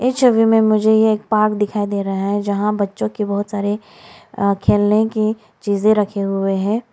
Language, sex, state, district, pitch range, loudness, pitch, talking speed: Hindi, female, Arunachal Pradesh, Lower Dibang Valley, 200-215 Hz, -17 LUFS, 210 Hz, 190 wpm